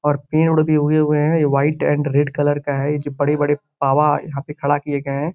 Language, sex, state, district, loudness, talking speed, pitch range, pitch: Hindi, male, Uttar Pradesh, Gorakhpur, -18 LUFS, 270 wpm, 145-150 Hz, 145 Hz